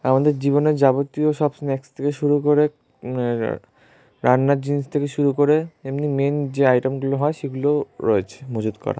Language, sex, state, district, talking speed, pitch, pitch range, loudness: Bengali, male, West Bengal, North 24 Parganas, 165 wpm, 140 Hz, 130-145 Hz, -21 LUFS